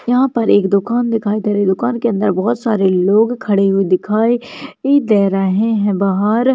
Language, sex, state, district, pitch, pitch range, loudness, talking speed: Hindi, female, Maharashtra, Solapur, 210 Hz, 195-235 Hz, -15 LUFS, 190 wpm